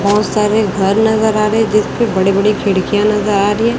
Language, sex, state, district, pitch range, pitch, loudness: Hindi, male, Chhattisgarh, Raipur, 200-220 Hz, 210 Hz, -13 LUFS